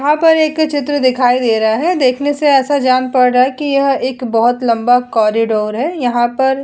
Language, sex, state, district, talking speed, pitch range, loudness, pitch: Hindi, female, Uttar Pradesh, Etah, 225 wpm, 240-285 Hz, -13 LUFS, 255 Hz